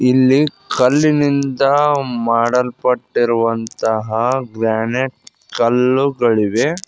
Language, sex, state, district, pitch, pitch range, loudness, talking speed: Kannada, male, Karnataka, Koppal, 125 Hz, 115-135 Hz, -16 LUFS, 45 wpm